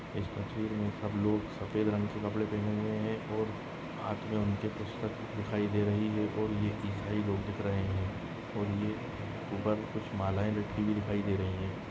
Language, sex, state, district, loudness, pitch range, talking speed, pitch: Hindi, male, Maharashtra, Nagpur, -34 LUFS, 100-110 Hz, 195 wpm, 105 Hz